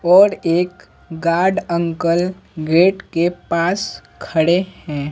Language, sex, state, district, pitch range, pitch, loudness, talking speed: Hindi, male, Bihar, Patna, 165-185 Hz, 175 Hz, -18 LUFS, 105 wpm